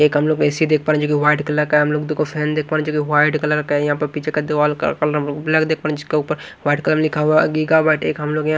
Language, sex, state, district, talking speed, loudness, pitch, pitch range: Hindi, male, Odisha, Nuapada, 295 wpm, -18 LUFS, 150 Hz, 150-155 Hz